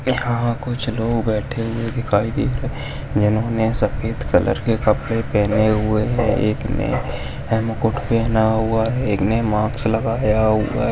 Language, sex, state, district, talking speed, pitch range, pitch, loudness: Hindi, male, Maharashtra, Chandrapur, 165 wpm, 110-120 Hz, 115 Hz, -20 LUFS